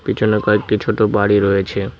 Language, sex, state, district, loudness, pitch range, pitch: Bengali, male, West Bengal, Cooch Behar, -16 LUFS, 100-110 Hz, 105 Hz